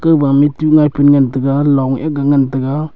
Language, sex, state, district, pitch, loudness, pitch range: Wancho, male, Arunachal Pradesh, Longding, 145 Hz, -12 LUFS, 135-150 Hz